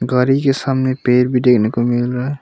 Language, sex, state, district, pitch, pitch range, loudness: Hindi, male, Arunachal Pradesh, Longding, 125 Hz, 120-135 Hz, -15 LUFS